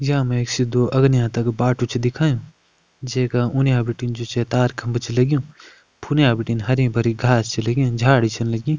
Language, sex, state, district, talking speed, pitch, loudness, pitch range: Kumaoni, male, Uttarakhand, Uttarkashi, 170 wpm, 125 Hz, -20 LUFS, 120-130 Hz